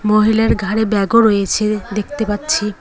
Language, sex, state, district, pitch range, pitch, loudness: Bengali, female, West Bengal, Cooch Behar, 205-220 Hz, 215 Hz, -15 LUFS